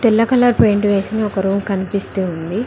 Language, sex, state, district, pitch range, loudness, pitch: Telugu, female, Telangana, Mahabubabad, 195-220 Hz, -16 LUFS, 200 Hz